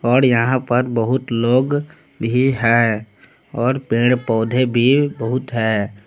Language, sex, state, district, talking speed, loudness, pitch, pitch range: Hindi, male, Jharkhand, Palamu, 130 wpm, -17 LUFS, 120 Hz, 115-130 Hz